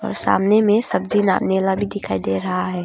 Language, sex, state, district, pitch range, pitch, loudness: Hindi, female, Arunachal Pradesh, Longding, 185-205 Hz, 190 Hz, -19 LUFS